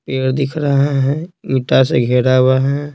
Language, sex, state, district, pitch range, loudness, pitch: Hindi, male, Bihar, Patna, 130-145 Hz, -15 LUFS, 135 Hz